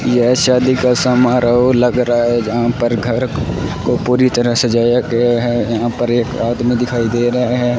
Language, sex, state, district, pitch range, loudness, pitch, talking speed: Hindi, male, Rajasthan, Bikaner, 120-125 Hz, -14 LUFS, 120 Hz, 185 wpm